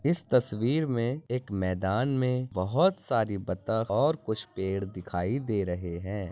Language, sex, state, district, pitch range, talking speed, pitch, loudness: Hindi, male, Andhra Pradesh, Visakhapatnam, 95-130 Hz, 150 wpm, 110 Hz, -29 LUFS